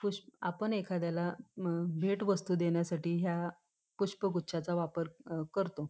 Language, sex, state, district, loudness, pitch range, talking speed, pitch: Marathi, female, Maharashtra, Pune, -35 LUFS, 170-195 Hz, 110 wpm, 175 Hz